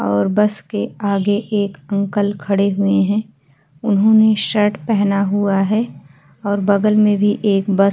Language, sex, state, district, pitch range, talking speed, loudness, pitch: Hindi, female, Uttar Pradesh, Hamirpur, 195-210 Hz, 160 wpm, -17 LUFS, 200 Hz